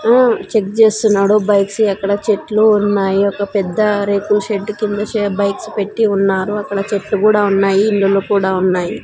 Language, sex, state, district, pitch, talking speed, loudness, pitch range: Telugu, female, Andhra Pradesh, Sri Satya Sai, 205 Hz, 155 wpm, -15 LUFS, 200-215 Hz